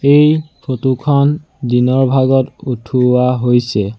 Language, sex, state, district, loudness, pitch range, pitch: Assamese, male, Assam, Sonitpur, -14 LUFS, 125-140 Hz, 130 Hz